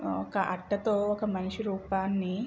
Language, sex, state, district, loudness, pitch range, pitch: Telugu, female, Andhra Pradesh, Chittoor, -31 LUFS, 185-210 Hz, 195 Hz